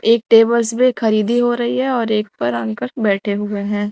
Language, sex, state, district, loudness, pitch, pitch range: Hindi, female, Maharashtra, Mumbai Suburban, -17 LUFS, 220 Hz, 205-235 Hz